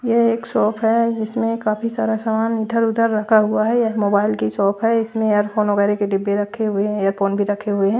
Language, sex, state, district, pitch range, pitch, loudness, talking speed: Hindi, female, Bihar, West Champaran, 205-225 Hz, 215 Hz, -19 LUFS, 215 wpm